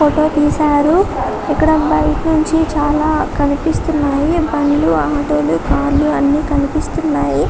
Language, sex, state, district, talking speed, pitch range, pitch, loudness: Telugu, female, Telangana, Karimnagar, 90 wpm, 285-310 Hz, 295 Hz, -15 LUFS